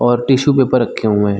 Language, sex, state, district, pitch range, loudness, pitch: Hindi, male, Chhattisgarh, Rajnandgaon, 105-135 Hz, -14 LUFS, 120 Hz